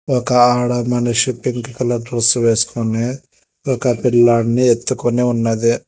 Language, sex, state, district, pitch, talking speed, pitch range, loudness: Telugu, male, Telangana, Hyderabad, 120 Hz, 110 wpm, 115-125 Hz, -16 LUFS